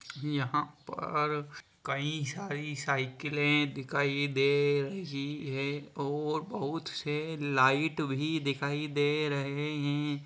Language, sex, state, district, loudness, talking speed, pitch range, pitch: Hindi, male, Bihar, Jahanabad, -32 LUFS, 105 wpm, 140-150 Hz, 145 Hz